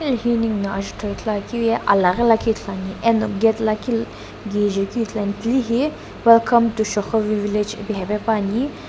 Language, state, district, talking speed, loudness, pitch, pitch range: Sumi, Nagaland, Dimapur, 150 wpm, -20 LUFS, 220 Hz, 205-230 Hz